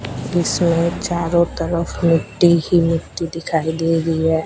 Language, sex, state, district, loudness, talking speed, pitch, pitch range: Hindi, female, Rajasthan, Bikaner, -18 LUFS, 135 wpm, 165 Hz, 165-170 Hz